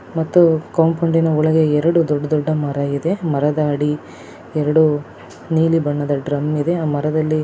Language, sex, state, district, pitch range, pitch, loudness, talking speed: Kannada, female, Karnataka, Dakshina Kannada, 145-160 Hz, 155 Hz, -17 LUFS, 130 wpm